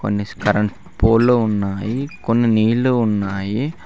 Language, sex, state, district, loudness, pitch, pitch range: Telugu, male, Telangana, Mahabubabad, -18 LUFS, 110 Hz, 105-120 Hz